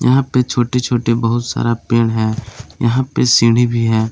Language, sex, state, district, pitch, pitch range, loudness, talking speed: Hindi, male, Jharkhand, Palamu, 120 Hz, 115-125 Hz, -15 LUFS, 175 wpm